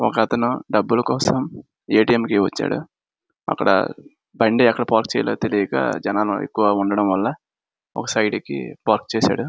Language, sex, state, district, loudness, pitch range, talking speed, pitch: Telugu, male, Andhra Pradesh, Srikakulam, -20 LUFS, 100-115 Hz, 150 wpm, 105 Hz